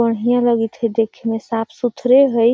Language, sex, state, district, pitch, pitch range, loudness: Magahi, female, Bihar, Gaya, 235 Hz, 225-245 Hz, -17 LUFS